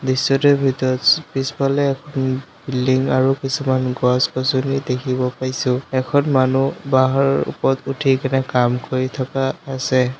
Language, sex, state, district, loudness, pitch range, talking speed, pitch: Assamese, male, Assam, Sonitpur, -19 LUFS, 130-135 Hz, 125 wpm, 130 Hz